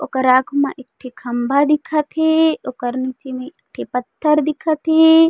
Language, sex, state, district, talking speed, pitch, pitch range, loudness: Chhattisgarhi, female, Chhattisgarh, Raigarh, 170 wpm, 285 Hz, 255-315 Hz, -17 LUFS